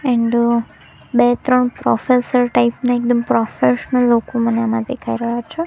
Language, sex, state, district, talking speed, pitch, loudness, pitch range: Gujarati, female, Gujarat, Gandhinagar, 150 wpm, 240 Hz, -17 LUFS, 230-250 Hz